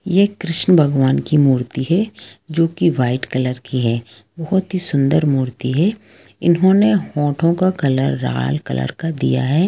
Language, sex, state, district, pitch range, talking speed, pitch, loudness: Hindi, female, Jharkhand, Sahebganj, 125-175 Hz, 160 wpm, 145 Hz, -17 LUFS